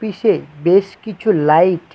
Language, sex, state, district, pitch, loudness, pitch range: Bengali, male, West Bengal, Cooch Behar, 185 Hz, -15 LUFS, 160-215 Hz